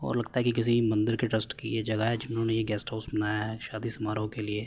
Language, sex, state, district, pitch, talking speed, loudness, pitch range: Hindi, male, Uttar Pradesh, Hamirpur, 110 Hz, 285 wpm, -29 LUFS, 110-115 Hz